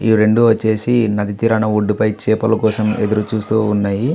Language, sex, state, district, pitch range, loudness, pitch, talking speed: Telugu, male, Andhra Pradesh, Visakhapatnam, 105-110 Hz, -16 LUFS, 110 Hz, 130 wpm